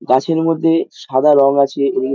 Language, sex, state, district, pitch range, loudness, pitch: Bengali, male, West Bengal, Dakshin Dinajpur, 135-160 Hz, -14 LUFS, 140 Hz